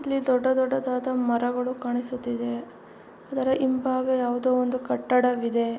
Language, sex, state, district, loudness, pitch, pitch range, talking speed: Kannada, female, Karnataka, Mysore, -25 LUFS, 250 Hz, 245-260 Hz, 105 wpm